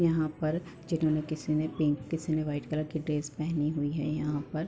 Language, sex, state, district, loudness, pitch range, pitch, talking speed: Hindi, female, Uttar Pradesh, Hamirpur, -31 LUFS, 150-160 Hz, 155 Hz, 230 wpm